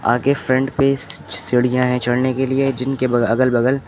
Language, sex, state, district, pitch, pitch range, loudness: Hindi, male, Uttar Pradesh, Lucknow, 130 Hz, 125-135 Hz, -18 LUFS